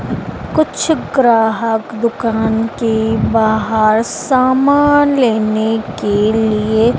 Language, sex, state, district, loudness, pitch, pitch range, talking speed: Hindi, female, Madhya Pradesh, Dhar, -14 LUFS, 225 Hz, 220-255 Hz, 75 wpm